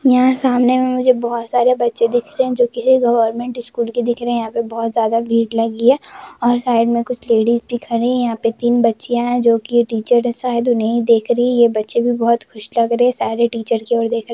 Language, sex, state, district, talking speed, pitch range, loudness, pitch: Hindi, female, Jharkhand, Jamtara, 250 wpm, 230-245 Hz, -16 LUFS, 235 Hz